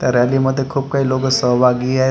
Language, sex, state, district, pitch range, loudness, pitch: Marathi, male, Maharashtra, Gondia, 125-135 Hz, -16 LUFS, 130 Hz